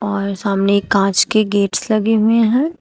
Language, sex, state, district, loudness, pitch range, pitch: Hindi, female, Uttar Pradesh, Shamli, -15 LUFS, 200-225 Hz, 205 Hz